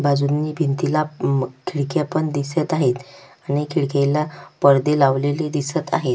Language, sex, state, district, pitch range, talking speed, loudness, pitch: Marathi, female, Maharashtra, Sindhudurg, 140-155 Hz, 125 wpm, -20 LUFS, 145 Hz